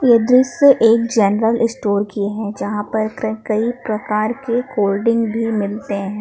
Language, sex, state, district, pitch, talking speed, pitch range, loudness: Hindi, female, Jharkhand, Palamu, 220 Hz, 175 wpm, 210-235 Hz, -17 LUFS